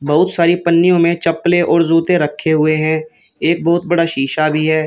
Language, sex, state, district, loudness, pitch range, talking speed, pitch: Hindi, male, Uttar Pradesh, Shamli, -14 LUFS, 155-175 Hz, 195 wpm, 165 Hz